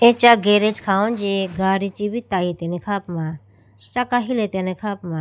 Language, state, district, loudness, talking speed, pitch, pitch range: Idu Mishmi, Arunachal Pradesh, Lower Dibang Valley, -20 LUFS, 140 wpm, 195 Hz, 175-215 Hz